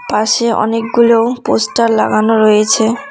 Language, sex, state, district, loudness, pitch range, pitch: Bengali, female, West Bengal, Cooch Behar, -12 LUFS, 215-235 Hz, 225 Hz